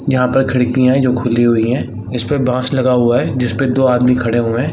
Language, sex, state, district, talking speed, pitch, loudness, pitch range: Hindi, male, Jharkhand, Sahebganj, 265 wpm, 125 Hz, -14 LUFS, 120-130 Hz